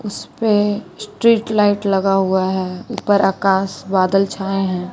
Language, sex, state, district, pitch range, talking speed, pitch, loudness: Hindi, female, Bihar, West Champaran, 190-205 Hz, 135 wpm, 195 Hz, -17 LUFS